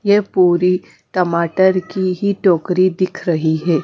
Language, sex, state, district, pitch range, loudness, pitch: Hindi, female, Punjab, Fazilka, 175-190 Hz, -16 LUFS, 180 Hz